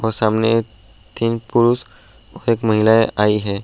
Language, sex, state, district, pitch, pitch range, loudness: Hindi, male, Uttar Pradesh, Budaun, 110 Hz, 105-115 Hz, -17 LUFS